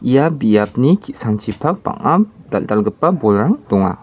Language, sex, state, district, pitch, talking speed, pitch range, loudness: Garo, male, Meghalaya, West Garo Hills, 120 Hz, 105 wpm, 105-165 Hz, -16 LUFS